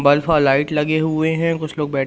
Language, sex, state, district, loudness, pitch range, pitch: Hindi, male, Madhya Pradesh, Umaria, -18 LUFS, 145-160 Hz, 150 Hz